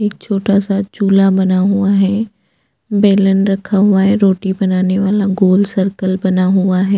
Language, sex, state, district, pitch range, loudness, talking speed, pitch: Hindi, female, Chhattisgarh, Jashpur, 190-200 Hz, -13 LUFS, 165 wpm, 195 Hz